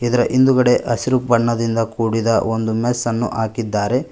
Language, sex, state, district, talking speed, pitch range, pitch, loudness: Kannada, male, Karnataka, Koppal, 115 wpm, 115-125 Hz, 120 Hz, -18 LUFS